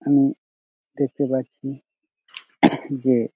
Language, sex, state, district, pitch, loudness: Bengali, male, West Bengal, Dakshin Dinajpur, 160 Hz, -22 LUFS